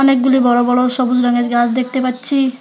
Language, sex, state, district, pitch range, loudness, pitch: Bengali, female, West Bengal, Alipurduar, 245-260 Hz, -14 LUFS, 250 Hz